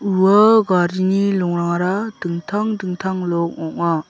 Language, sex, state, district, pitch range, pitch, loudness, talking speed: Garo, male, Meghalaya, South Garo Hills, 175-200 Hz, 185 Hz, -18 LUFS, 105 wpm